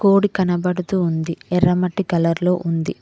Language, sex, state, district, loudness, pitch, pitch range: Telugu, female, Telangana, Mahabubabad, -19 LUFS, 180 Hz, 170-185 Hz